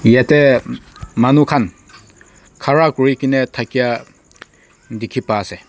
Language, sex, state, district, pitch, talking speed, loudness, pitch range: Nagamese, male, Nagaland, Dimapur, 130 Hz, 105 wpm, -15 LUFS, 115-140 Hz